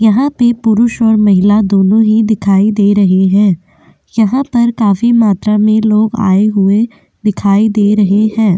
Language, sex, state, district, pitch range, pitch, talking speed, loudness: Hindi, female, Goa, North and South Goa, 200-225 Hz, 215 Hz, 160 wpm, -11 LUFS